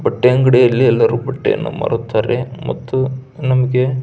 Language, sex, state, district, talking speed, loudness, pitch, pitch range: Kannada, male, Karnataka, Belgaum, 90 wpm, -16 LUFS, 130 Hz, 125-130 Hz